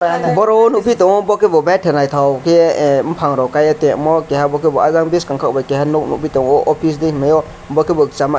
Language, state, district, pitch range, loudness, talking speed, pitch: Kokborok, Tripura, West Tripura, 145-170 Hz, -14 LUFS, 195 wpm, 155 Hz